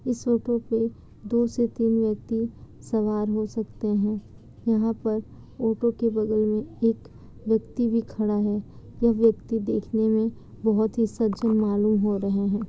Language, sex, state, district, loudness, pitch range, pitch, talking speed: Hindi, female, Bihar, Kishanganj, -25 LUFS, 215-230 Hz, 220 Hz, 160 wpm